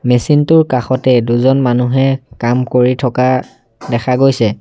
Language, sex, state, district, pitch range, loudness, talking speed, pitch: Assamese, male, Assam, Sonitpur, 125-135 Hz, -13 LUFS, 130 wpm, 125 Hz